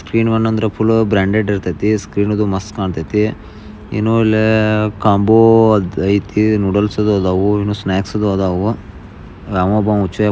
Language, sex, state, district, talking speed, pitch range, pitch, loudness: Kannada, male, Karnataka, Belgaum, 120 wpm, 100-110 Hz, 105 Hz, -15 LUFS